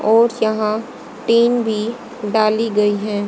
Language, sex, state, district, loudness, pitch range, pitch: Hindi, female, Haryana, Rohtak, -17 LUFS, 215-235 Hz, 220 Hz